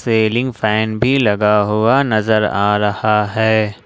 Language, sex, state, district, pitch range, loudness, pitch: Hindi, male, Jharkhand, Ranchi, 105-110 Hz, -15 LUFS, 110 Hz